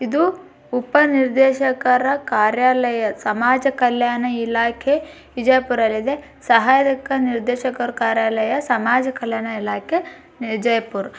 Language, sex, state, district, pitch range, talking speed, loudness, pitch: Kannada, male, Karnataka, Bijapur, 230-270 Hz, 85 wpm, -19 LUFS, 250 Hz